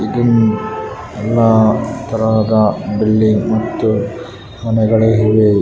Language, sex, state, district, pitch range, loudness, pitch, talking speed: Kannada, male, Karnataka, Raichur, 110-115 Hz, -14 LUFS, 110 Hz, 85 wpm